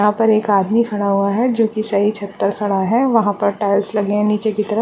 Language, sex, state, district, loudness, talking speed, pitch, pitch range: Hindi, female, Uttarakhand, Uttarkashi, -17 LUFS, 275 wpm, 210 Hz, 200-220 Hz